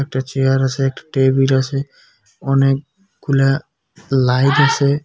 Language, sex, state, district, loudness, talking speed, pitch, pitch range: Bengali, male, West Bengal, Cooch Behar, -16 LUFS, 105 wpm, 135 Hz, 135-140 Hz